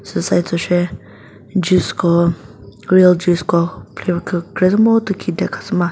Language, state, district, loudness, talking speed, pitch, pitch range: Chakhesang, Nagaland, Dimapur, -16 LUFS, 170 wpm, 175 Hz, 170-185 Hz